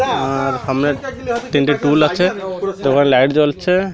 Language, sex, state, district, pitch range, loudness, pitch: Bengali, male, Odisha, Malkangiri, 135-190 Hz, -16 LUFS, 150 Hz